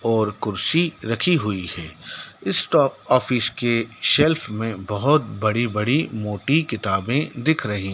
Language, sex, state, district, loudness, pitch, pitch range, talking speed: Hindi, male, Madhya Pradesh, Dhar, -21 LUFS, 115 Hz, 105-145 Hz, 130 wpm